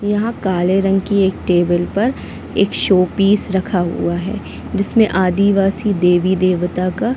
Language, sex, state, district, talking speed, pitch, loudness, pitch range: Hindi, female, Chhattisgarh, Bilaspur, 140 wpm, 190 Hz, -16 LUFS, 180-205 Hz